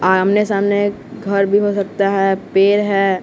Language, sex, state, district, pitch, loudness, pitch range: Hindi, male, Bihar, West Champaran, 200 Hz, -16 LUFS, 195-205 Hz